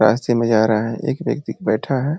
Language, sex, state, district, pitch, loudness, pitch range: Hindi, male, Uttar Pradesh, Ghazipur, 115 Hz, -19 LUFS, 110-125 Hz